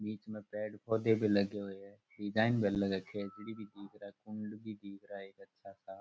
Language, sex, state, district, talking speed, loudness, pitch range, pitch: Rajasthani, male, Rajasthan, Churu, 250 wpm, -36 LUFS, 100-105 Hz, 100 Hz